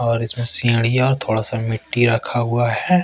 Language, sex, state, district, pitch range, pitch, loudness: Hindi, male, Jharkhand, Deoghar, 115-125 Hz, 120 Hz, -17 LUFS